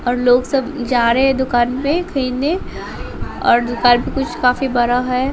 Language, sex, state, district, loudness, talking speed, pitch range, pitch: Hindi, male, Bihar, West Champaran, -16 LUFS, 180 wpm, 245-270 Hz, 255 Hz